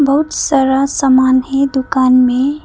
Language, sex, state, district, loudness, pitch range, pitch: Hindi, female, Arunachal Pradesh, Papum Pare, -12 LUFS, 260-280 Hz, 270 Hz